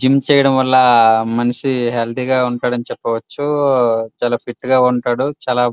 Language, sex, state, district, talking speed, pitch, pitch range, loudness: Telugu, male, Andhra Pradesh, Srikakulam, 145 wpm, 125 Hz, 120-130 Hz, -15 LUFS